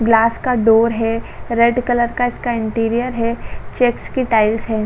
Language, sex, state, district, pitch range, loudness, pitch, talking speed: Hindi, female, Uttar Pradesh, Budaun, 225-240 Hz, -17 LUFS, 230 Hz, 185 wpm